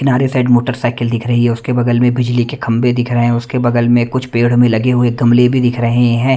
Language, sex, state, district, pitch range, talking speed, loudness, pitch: Hindi, male, Delhi, New Delhi, 120-125 Hz, 265 wpm, -13 LUFS, 120 Hz